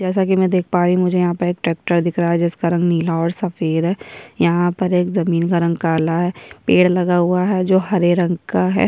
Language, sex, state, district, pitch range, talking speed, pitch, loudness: Hindi, female, Chhattisgarh, Sukma, 170-180 Hz, 255 wpm, 175 Hz, -17 LUFS